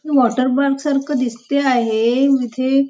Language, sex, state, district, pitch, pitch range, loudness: Marathi, female, Maharashtra, Nagpur, 265 Hz, 250-275 Hz, -17 LUFS